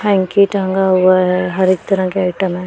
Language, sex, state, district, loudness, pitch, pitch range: Hindi, female, Punjab, Pathankot, -14 LUFS, 185 Hz, 185-195 Hz